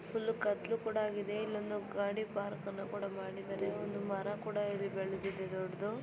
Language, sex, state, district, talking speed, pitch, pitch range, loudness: Kannada, female, Karnataka, Bijapur, 160 wpm, 205 Hz, 195-210 Hz, -38 LUFS